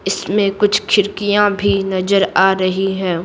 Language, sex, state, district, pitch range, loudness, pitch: Hindi, female, Bihar, Patna, 190-205 Hz, -15 LUFS, 195 Hz